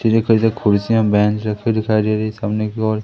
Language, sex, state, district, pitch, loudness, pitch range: Hindi, male, Madhya Pradesh, Katni, 110 Hz, -17 LUFS, 105-110 Hz